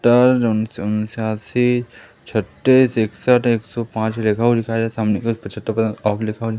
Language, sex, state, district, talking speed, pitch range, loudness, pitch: Hindi, male, Madhya Pradesh, Katni, 100 wpm, 110-120 Hz, -19 LUFS, 115 Hz